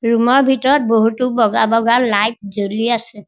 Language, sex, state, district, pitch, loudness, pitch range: Assamese, female, Assam, Sonitpur, 230 Hz, -15 LUFS, 220-245 Hz